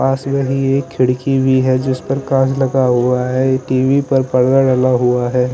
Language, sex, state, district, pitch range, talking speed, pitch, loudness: Hindi, male, Chandigarh, Chandigarh, 125-135 Hz, 195 wpm, 130 Hz, -15 LUFS